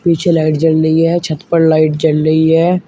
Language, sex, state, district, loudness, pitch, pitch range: Hindi, male, Uttar Pradesh, Shamli, -12 LUFS, 160 Hz, 155-170 Hz